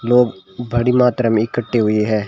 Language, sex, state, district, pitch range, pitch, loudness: Hindi, male, Rajasthan, Bikaner, 110-125 Hz, 120 Hz, -17 LUFS